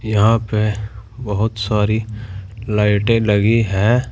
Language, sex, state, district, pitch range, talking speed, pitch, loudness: Hindi, male, Uttar Pradesh, Saharanpur, 105-110 Hz, 100 wpm, 110 Hz, -17 LUFS